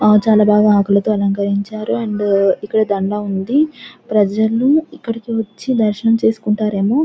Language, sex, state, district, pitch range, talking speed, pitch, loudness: Telugu, female, Telangana, Nalgonda, 205-225 Hz, 125 wpm, 215 Hz, -16 LUFS